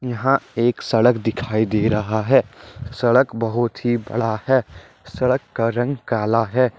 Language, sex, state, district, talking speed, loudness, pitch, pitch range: Hindi, male, Jharkhand, Deoghar, 150 wpm, -20 LUFS, 120 Hz, 110-125 Hz